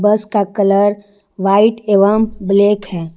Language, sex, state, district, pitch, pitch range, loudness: Hindi, female, Jharkhand, Garhwa, 205 Hz, 195-210 Hz, -14 LUFS